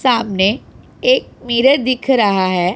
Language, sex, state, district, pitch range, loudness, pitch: Hindi, female, Punjab, Pathankot, 195-265 Hz, -15 LUFS, 245 Hz